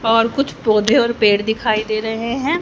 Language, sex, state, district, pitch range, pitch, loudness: Hindi, female, Haryana, Rohtak, 215-240 Hz, 225 Hz, -17 LUFS